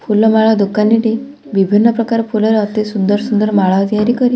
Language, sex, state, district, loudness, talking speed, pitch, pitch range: Odia, female, Odisha, Khordha, -13 LUFS, 150 wpm, 215 Hz, 210-230 Hz